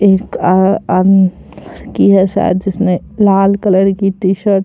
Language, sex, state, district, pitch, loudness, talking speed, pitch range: Hindi, female, Bihar, Samastipur, 195 Hz, -12 LUFS, 155 wpm, 190-200 Hz